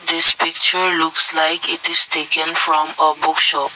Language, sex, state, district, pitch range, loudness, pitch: English, male, Assam, Kamrup Metropolitan, 155-160 Hz, -15 LUFS, 160 Hz